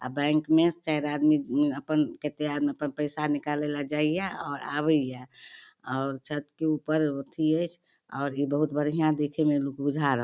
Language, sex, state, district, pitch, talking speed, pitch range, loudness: Maithili, female, Bihar, Darbhanga, 150 Hz, 200 wpm, 145-155 Hz, -28 LUFS